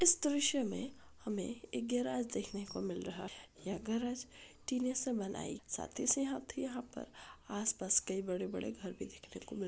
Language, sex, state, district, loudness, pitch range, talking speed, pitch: Hindi, female, Andhra Pradesh, Guntur, -38 LUFS, 200-270 Hz, 215 wpm, 240 Hz